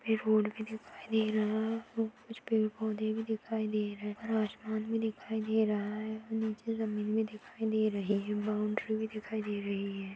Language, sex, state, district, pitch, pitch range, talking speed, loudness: Hindi, female, Chhattisgarh, Jashpur, 220 Hz, 210-220 Hz, 205 wpm, -34 LUFS